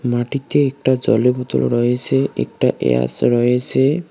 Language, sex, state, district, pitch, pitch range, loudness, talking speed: Bengali, male, West Bengal, Cooch Behar, 125 Hz, 120-135 Hz, -17 LUFS, 100 wpm